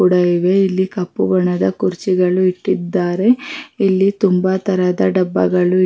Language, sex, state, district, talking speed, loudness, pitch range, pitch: Kannada, female, Karnataka, Raichur, 110 wpm, -16 LUFS, 180-190 Hz, 185 Hz